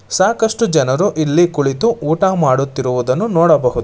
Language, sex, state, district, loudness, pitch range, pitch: Kannada, male, Karnataka, Bangalore, -15 LUFS, 140-220 Hz, 165 Hz